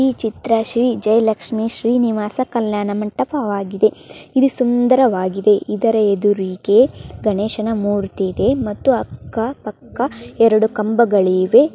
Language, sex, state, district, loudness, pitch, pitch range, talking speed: Kannada, male, Karnataka, Dharwad, -17 LUFS, 220 Hz, 205-240 Hz, 95 wpm